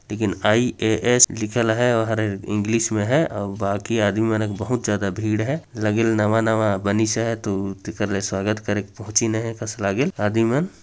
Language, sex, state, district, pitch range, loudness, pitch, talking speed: Chhattisgarhi, male, Chhattisgarh, Jashpur, 105-115 Hz, -21 LUFS, 110 Hz, 205 wpm